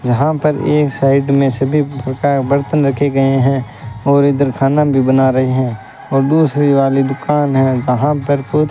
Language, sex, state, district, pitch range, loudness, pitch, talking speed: Hindi, male, Rajasthan, Bikaner, 135-145 Hz, -14 LUFS, 135 Hz, 185 wpm